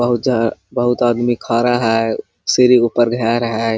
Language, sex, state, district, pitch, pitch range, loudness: Hindi, male, Jharkhand, Sahebganj, 120 Hz, 115-120 Hz, -16 LUFS